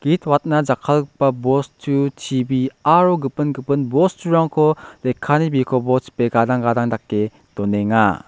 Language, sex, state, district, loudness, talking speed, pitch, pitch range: Garo, male, Meghalaya, South Garo Hills, -18 LUFS, 115 wpm, 135 Hz, 125-150 Hz